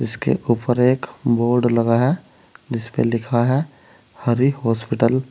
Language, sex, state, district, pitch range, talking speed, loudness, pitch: Hindi, male, Uttar Pradesh, Saharanpur, 115-130 Hz, 135 wpm, -19 LUFS, 120 Hz